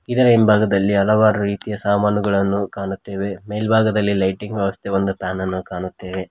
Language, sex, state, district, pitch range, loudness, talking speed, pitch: Kannada, male, Karnataka, Koppal, 95-105 Hz, -19 LUFS, 125 wpm, 100 Hz